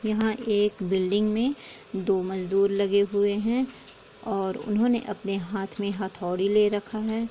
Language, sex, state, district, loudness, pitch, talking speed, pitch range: Hindi, female, Bihar, East Champaran, -26 LUFS, 205 Hz, 150 wpm, 195-220 Hz